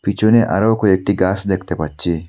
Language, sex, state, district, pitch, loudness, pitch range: Bengali, male, Assam, Hailakandi, 95 Hz, -16 LUFS, 85-105 Hz